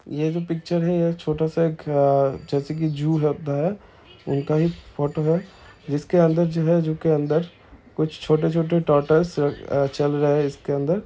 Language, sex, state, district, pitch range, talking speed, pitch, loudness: Hindi, male, Bihar, Saran, 145-165 Hz, 170 wpm, 155 Hz, -22 LUFS